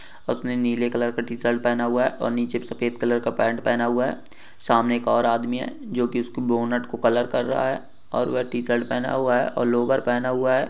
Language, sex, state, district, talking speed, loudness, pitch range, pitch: Hindi, male, Uttar Pradesh, Budaun, 250 wpm, -23 LUFS, 120-125 Hz, 120 Hz